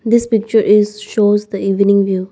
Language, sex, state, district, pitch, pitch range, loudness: English, female, Arunachal Pradesh, Lower Dibang Valley, 210 Hz, 200-220 Hz, -14 LUFS